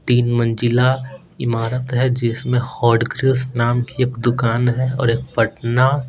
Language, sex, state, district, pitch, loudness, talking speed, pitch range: Hindi, male, Bihar, Patna, 125 Hz, -18 LUFS, 150 wpm, 120-130 Hz